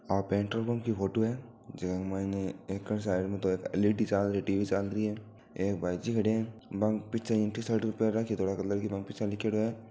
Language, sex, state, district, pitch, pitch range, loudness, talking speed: Marwari, male, Rajasthan, Nagaur, 105 Hz, 100-110 Hz, -32 LUFS, 235 wpm